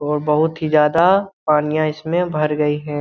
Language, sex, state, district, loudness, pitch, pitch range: Hindi, male, Bihar, Saran, -17 LUFS, 155 Hz, 150-160 Hz